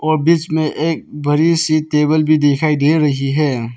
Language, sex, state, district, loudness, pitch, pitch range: Hindi, male, Arunachal Pradesh, Papum Pare, -15 LUFS, 155 Hz, 145-155 Hz